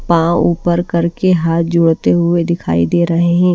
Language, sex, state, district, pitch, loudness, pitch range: Hindi, female, Maharashtra, Washim, 170 Hz, -14 LUFS, 170-175 Hz